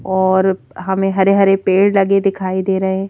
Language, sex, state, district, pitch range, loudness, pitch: Hindi, female, Madhya Pradesh, Bhopal, 190-195 Hz, -15 LUFS, 190 Hz